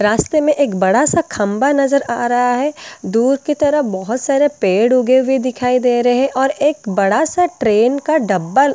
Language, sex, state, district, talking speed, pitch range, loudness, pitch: Hindi, female, Bihar, Katihar, 205 wpm, 230-290 Hz, -15 LUFS, 260 Hz